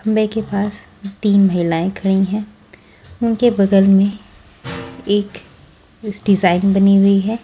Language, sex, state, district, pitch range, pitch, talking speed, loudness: Hindi, female, Bihar, West Champaran, 195-210 Hz, 200 Hz, 130 wpm, -15 LUFS